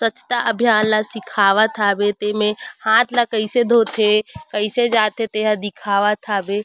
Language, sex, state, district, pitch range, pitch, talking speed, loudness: Chhattisgarhi, female, Chhattisgarh, Rajnandgaon, 210-230 Hz, 215 Hz, 145 wpm, -17 LUFS